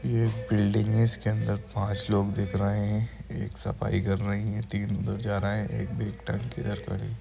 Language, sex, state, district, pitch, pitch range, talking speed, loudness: Hindi, male, Bihar, Gaya, 105 Hz, 100-110 Hz, 225 wpm, -29 LUFS